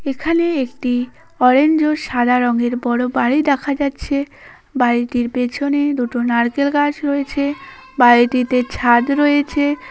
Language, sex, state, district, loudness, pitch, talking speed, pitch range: Bengali, female, West Bengal, Paschim Medinipur, -16 LUFS, 265 Hz, 120 wpm, 245-285 Hz